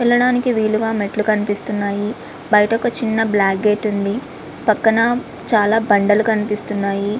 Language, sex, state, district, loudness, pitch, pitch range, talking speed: Telugu, female, Andhra Pradesh, Visakhapatnam, -17 LUFS, 215 Hz, 205-225 Hz, 110 wpm